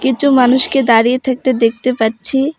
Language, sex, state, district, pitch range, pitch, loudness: Bengali, female, West Bengal, Alipurduar, 235-265 Hz, 255 Hz, -13 LUFS